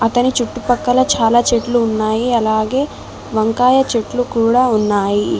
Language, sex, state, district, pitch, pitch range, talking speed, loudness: Telugu, female, Telangana, Mahabubabad, 235 Hz, 220-245 Hz, 110 wpm, -15 LUFS